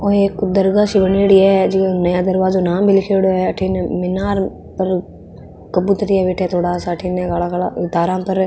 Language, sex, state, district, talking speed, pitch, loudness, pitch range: Marwari, female, Rajasthan, Nagaur, 155 wpm, 190 Hz, -16 LUFS, 180-195 Hz